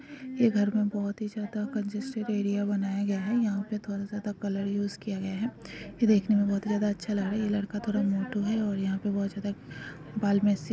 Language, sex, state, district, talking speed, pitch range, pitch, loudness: Hindi, female, Karnataka, Bijapur, 235 wpm, 200-215 Hz, 205 Hz, -29 LUFS